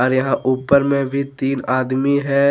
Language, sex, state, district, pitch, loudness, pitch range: Hindi, male, Jharkhand, Deoghar, 135 Hz, -18 LUFS, 130-140 Hz